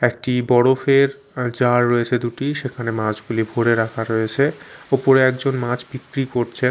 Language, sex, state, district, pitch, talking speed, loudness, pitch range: Bengali, male, Chhattisgarh, Raipur, 125 Hz, 145 wpm, -19 LUFS, 120-135 Hz